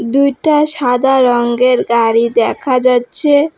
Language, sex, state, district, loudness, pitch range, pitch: Bengali, female, West Bengal, Alipurduar, -12 LUFS, 240-280 Hz, 255 Hz